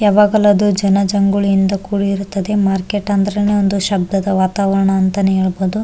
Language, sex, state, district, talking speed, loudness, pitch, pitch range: Kannada, male, Karnataka, Bellary, 125 wpm, -15 LUFS, 200 Hz, 195-205 Hz